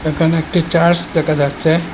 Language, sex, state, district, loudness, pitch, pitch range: Bengali, male, Assam, Hailakandi, -15 LUFS, 165 Hz, 155-170 Hz